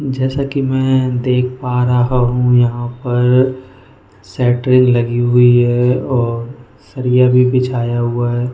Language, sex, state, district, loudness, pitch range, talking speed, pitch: Hindi, male, Goa, North and South Goa, -14 LUFS, 120-130 Hz, 135 wpm, 125 Hz